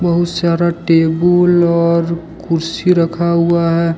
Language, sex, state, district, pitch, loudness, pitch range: Hindi, male, Jharkhand, Deoghar, 170 Hz, -14 LUFS, 165-170 Hz